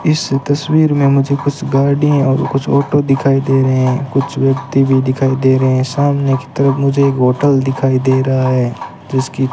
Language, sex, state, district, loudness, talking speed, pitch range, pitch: Hindi, male, Rajasthan, Bikaner, -14 LUFS, 200 wpm, 130-140 Hz, 135 Hz